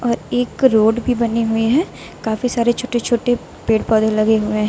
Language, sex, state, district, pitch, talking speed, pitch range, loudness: Hindi, female, Uttar Pradesh, Lucknow, 235 Hz, 205 wpm, 220-245 Hz, -17 LUFS